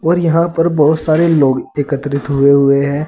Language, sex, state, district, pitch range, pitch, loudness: Hindi, male, Uttar Pradesh, Saharanpur, 140-165 Hz, 145 Hz, -13 LUFS